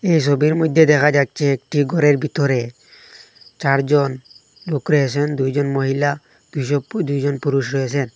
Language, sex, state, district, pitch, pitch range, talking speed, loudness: Bengali, male, Assam, Hailakandi, 145 Hz, 135-150 Hz, 130 wpm, -18 LUFS